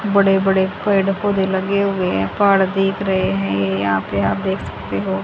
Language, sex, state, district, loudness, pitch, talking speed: Hindi, female, Haryana, Charkhi Dadri, -18 LUFS, 190 Hz, 205 wpm